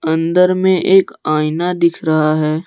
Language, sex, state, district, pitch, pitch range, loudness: Hindi, male, Jharkhand, Deoghar, 165 Hz, 155-180 Hz, -14 LUFS